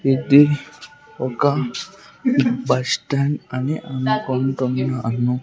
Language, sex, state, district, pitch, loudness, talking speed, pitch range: Telugu, male, Andhra Pradesh, Sri Satya Sai, 130 Hz, -20 LUFS, 65 wpm, 125-145 Hz